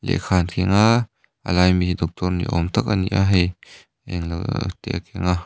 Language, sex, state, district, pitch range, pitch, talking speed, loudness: Mizo, male, Mizoram, Aizawl, 85-100 Hz, 90 Hz, 240 wpm, -21 LUFS